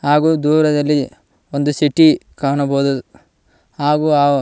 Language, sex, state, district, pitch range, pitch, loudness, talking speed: Kannada, male, Karnataka, Koppal, 140-150 Hz, 145 Hz, -16 LUFS, 80 wpm